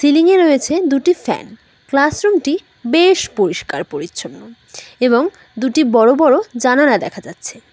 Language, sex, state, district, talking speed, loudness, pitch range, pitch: Bengali, female, West Bengal, Cooch Behar, 140 wpm, -14 LUFS, 250-335 Hz, 290 Hz